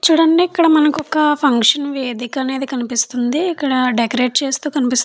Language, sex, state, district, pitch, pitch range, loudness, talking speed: Telugu, female, Andhra Pradesh, Chittoor, 275 Hz, 250-305 Hz, -16 LUFS, 155 wpm